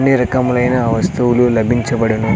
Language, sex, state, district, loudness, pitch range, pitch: Telugu, male, Andhra Pradesh, Sri Satya Sai, -14 LUFS, 115-125 Hz, 120 Hz